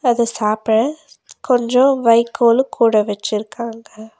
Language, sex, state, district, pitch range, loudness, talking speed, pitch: Tamil, female, Tamil Nadu, Nilgiris, 220-250 Hz, -16 LUFS, 85 wpm, 230 Hz